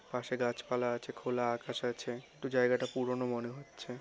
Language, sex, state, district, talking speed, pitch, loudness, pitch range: Bengali, male, West Bengal, North 24 Parganas, 165 wpm, 125 Hz, -36 LUFS, 120-125 Hz